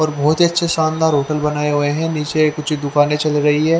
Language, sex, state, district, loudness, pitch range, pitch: Hindi, male, Haryana, Charkhi Dadri, -16 LUFS, 150-160 Hz, 150 Hz